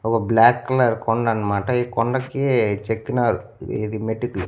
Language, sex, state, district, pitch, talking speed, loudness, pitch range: Telugu, male, Andhra Pradesh, Annamaya, 115 Hz, 135 wpm, -21 LUFS, 110-125 Hz